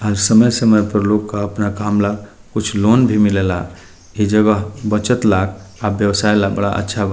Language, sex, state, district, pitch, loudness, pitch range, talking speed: Bhojpuri, male, Bihar, Muzaffarpur, 105 Hz, -16 LUFS, 100-105 Hz, 195 wpm